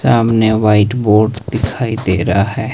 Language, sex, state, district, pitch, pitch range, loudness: Hindi, male, Himachal Pradesh, Shimla, 110 Hz, 105-115 Hz, -14 LUFS